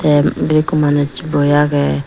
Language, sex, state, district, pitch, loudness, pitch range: Chakma, female, Tripura, Dhalai, 145 Hz, -14 LUFS, 145-155 Hz